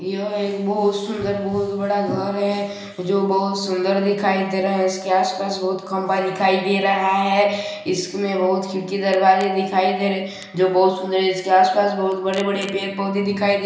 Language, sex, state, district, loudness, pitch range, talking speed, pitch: Hindi, male, Chhattisgarh, Balrampur, -20 LUFS, 190-200 Hz, 200 wpm, 195 Hz